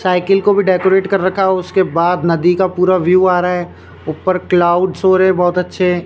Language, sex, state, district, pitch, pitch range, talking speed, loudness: Hindi, male, Rajasthan, Jaipur, 185 Hz, 180-190 Hz, 220 wpm, -13 LUFS